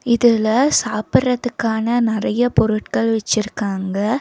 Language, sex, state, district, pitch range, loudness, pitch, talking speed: Tamil, female, Tamil Nadu, Nilgiris, 215-240 Hz, -18 LUFS, 225 Hz, 70 wpm